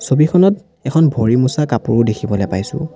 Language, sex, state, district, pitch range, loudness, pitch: Assamese, male, Assam, Sonitpur, 110-160 Hz, -15 LUFS, 135 Hz